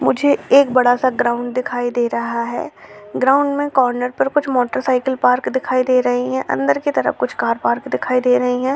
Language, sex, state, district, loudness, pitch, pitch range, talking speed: Hindi, female, Bihar, Jamui, -17 LUFS, 250 Hz, 245-265 Hz, 205 wpm